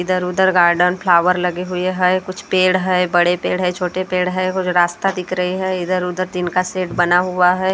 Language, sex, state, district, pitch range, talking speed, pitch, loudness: Hindi, female, Maharashtra, Gondia, 180-185 Hz, 210 wpm, 180 Hz, -17 LUFS